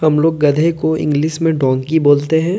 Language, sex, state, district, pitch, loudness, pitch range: Hindi, male, Jharkhand, Deoghar, 155 Hz, -14 LUFS, 145-160 Hz